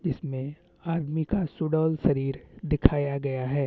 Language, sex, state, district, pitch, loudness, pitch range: Hindi, male, Chhattisgarh, Bastar, 150 Hz, -27 LUFS, 140-165 Hz